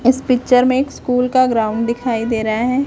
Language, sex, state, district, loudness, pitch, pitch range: Hindi, female, Chhattisgarh, Raipur, -16 LUFS, 250 Hz, 230-255 Hz